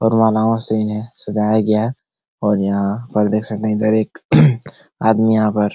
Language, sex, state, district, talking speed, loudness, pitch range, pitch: Hindi, male, Bihar, Araria, 185 wpm, -17 LUFS, 105-110 Hz, 110 Hz